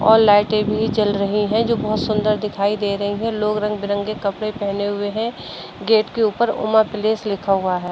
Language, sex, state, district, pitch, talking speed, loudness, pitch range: Hindi, female, Uttar Pradesh, Budaun, 210 Hz, 210 wpm, -19 LUFS, 205-220 Hz